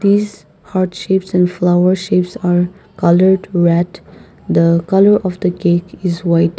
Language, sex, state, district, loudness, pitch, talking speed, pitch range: English, female, Nagaland, Kohima, -14 LUFS, 180 Hz, 145 wpm, 175-190 Hz